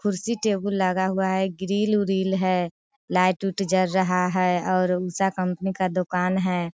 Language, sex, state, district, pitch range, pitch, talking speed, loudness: Hindi, female, Bihar, Sitamarhi, 185-195 Hz, 190 Hz, 170 wpm, -24 LUFS